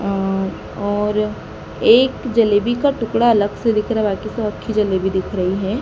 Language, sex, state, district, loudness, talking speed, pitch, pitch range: Hindi, male, Madhya Pradesh, Dhar, -18 LUFS, 175 wpm, 210 Hz, 195-230 Hz